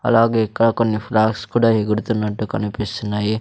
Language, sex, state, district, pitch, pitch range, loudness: Telugu, male, Andhra Pradesh, Sri Satya Sai, 110 Hz, 105-115 Hz, -19 LUFS